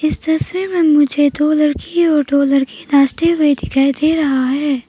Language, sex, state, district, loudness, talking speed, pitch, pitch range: Hindi, female, Arunachal Pradesh, Papum Pare, -14 LUFS, 185 wpm, 295 Hz, 275-315 Hz